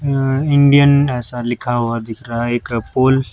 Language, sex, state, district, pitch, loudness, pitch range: Hindi, male, Chhattisgarh, Raipur, 125 Hz, -16 LUFS, 120-140 Hz